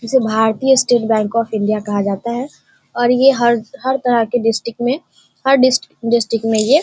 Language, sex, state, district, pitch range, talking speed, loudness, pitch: Hindi, female, Bihar, Darbhanga, 225-255 Hz, 195 wpm, -16 LUFS, 235 Hz